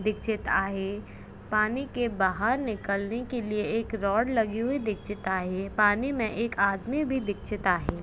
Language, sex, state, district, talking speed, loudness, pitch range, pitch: Hindi, female, Maharashtra, Pune, 155 wpm, -28 LUFS, 200-235 Hz, 215 Hz